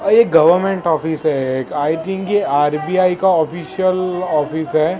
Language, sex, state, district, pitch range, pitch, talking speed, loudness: Hindi, male, Maharashtra, Mumbai Suburban, 155-190 Hz, 165 Hz, 155 wpm, -16 LUFS